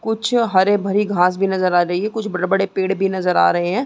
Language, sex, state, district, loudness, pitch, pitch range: Hindi, female, Uttar Pradesh, Muzaffarnagar, -18 LUFS, 190 Hz, 180-205 Hz